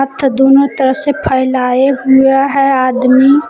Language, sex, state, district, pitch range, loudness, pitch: Hindi, female, Jharkhand, Palamu, 260-275 Hz, -10 LUFS, 270 Hz